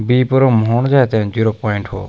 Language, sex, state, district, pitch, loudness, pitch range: Garhwali, male, Uttarakhand, Tehri Garhwal, 110 Hz, -14 LUFS, 105-125 Hz